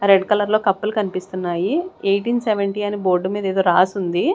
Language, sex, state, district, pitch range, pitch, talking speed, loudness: Telugu, female, Andhra Pradesh, Sri Satya Sai, 185-210 Hz, 200 Hz, 165 wpm, -19 LUFS